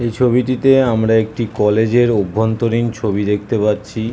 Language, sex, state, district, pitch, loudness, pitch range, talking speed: Bengali, male, West Bengal, Kolkata, 110 Hz, -15 LUFS, 105-120 Hz, 160 wpm